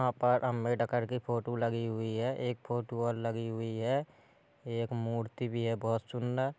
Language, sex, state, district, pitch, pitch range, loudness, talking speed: Hindi, male, Uttar Pradesh, Hamirpur, 120 Hz, 115-125 Hz, -34 LUFS, 180 wpm